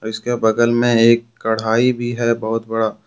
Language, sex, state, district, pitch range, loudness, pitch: Hindi, male, Jharkhand, Deoghar, 110-120 Hz, -17 LUFS, 115 Hz